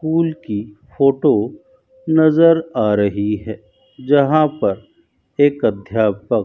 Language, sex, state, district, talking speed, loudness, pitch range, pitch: Hindi, male, Rajasthan, Bikaner, 110 wpm, -16 LUFS, 105-160 Hz, 145 Hz